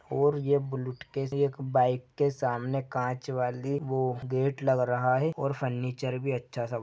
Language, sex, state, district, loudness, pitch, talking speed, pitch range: Hindi, male, Jharkhand, Sahebganj, -29 LUFS, 130 Hz, 185 wpm, 125-140 Hz